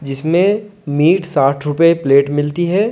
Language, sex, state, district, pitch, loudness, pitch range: Hindi, male, Jharkhand, Deoghar, 160 Hz, -14 LUFS, 145-180 Hz